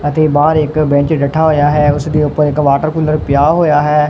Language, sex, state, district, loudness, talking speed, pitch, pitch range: Punjabi, male, Punjab, Kapurthala, -12 LUFS, 235 wpm, 150 Hz, 145-155 Hz